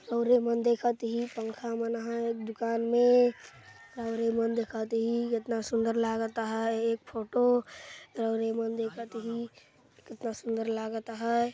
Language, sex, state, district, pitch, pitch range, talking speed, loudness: Chhattisgarhi, male, Chhattisgarh, Jashpur, 230 Hz, 225-235 Hz, 145 wpm, -30 LUFS